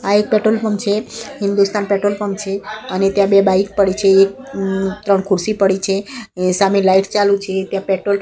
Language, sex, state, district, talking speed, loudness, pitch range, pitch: Gujarati, female, Gujarat, Gandhinagar, 195 wpm, -16 LUFS, 195-205 Hz, 200 Hz